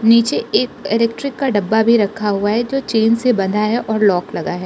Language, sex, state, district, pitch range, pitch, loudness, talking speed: Hindi, female, Arunachal Pradesh, Lower Dibang Valley, 205-235 Hz, 225 Hz, -16 LUFS, 230 wpm